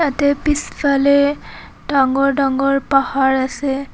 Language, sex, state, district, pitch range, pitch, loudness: Assamese, female, Assam, Kamrup Metropolitan, 270-285 Hz, 275 Hz, -16 LUFS